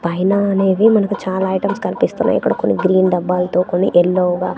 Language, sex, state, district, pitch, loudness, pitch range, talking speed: Telugu, female, Andhra Pradesh, Manyam, 185 Hz, -16 LUFS, 180-195 Hz, 185 wpm